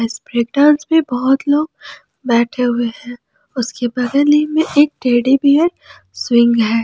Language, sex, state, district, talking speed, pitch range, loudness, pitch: Hindi, female, Jharkhand, Palamu, 150 wpm, 240-290 Hz, -15 LUFS, 250 Hz